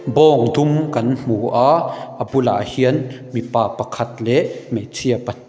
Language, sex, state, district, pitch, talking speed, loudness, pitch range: Mizo, male, Mizoram, Aizawl, 125 Hz, 140 wpm, -18 LUFS, 115-135 Hz